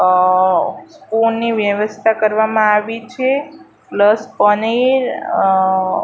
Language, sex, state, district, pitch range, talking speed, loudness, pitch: Gujarati, female, Gujarat, Gandhinagar, 205-230 Hz, 100 wpm, -15 LUFS, 215 Hz